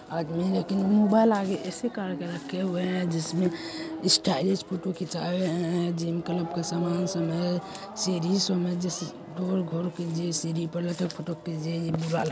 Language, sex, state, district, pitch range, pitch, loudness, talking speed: Hindi, male, Bihar, Saharsa, 165-185 Hz, 175 Hz, -28 LUFS, 160 wpm